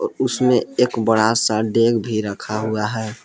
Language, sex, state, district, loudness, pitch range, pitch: Hindi, male, Jharkhand, Palamu, -19 LUFS, 110-115 Hz, 110 Hz